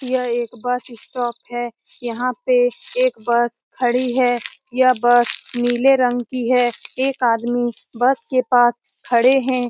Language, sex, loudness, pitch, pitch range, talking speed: Hindi, female, -19 LUFS, 245 Hz, 240-255 Hz, 155 wpm